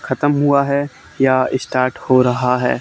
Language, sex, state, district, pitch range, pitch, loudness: Hindi, male, Haryana, Charkhi Dadri, 130-140 Hz, 130 Hz, -16 LUFS